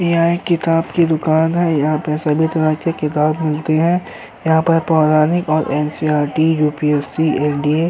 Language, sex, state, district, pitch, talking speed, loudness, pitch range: Hindi, male, Uttar Pradesh, Hamirpur, 155 Hz, 165 wpm, -16 LUFS, 150-165 Hz